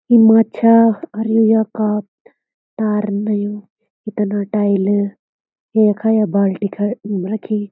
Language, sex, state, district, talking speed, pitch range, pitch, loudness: Garhwali, female, Uttarakhand, Uttarkashi, 115 wpm, 205-225 Hz, 210 Hz, -16 LUFS